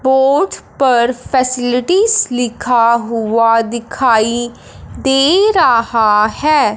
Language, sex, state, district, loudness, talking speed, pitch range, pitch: Hindi, male, Punjab, Fazilka, -13 LUFS, 80 wpm, 230-270 Hz, 245 Hz